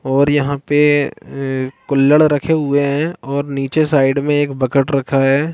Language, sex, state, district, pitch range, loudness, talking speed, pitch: Hindi, male, Chhattisgarh, Balrampur, 135-145 Hz, -16 LUFS, 175 wpm, 140 Hz